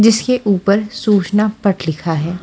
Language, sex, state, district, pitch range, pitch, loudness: Hindi, female, Haryana, Charkhi Dadri, 180-215 Hz, 200 Hz, -16 LUFS